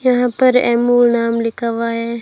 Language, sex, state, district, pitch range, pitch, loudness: Hindi, female, Rajasthan, Bikaner, 230-245 Hz, 235 Hz, -15 LUFS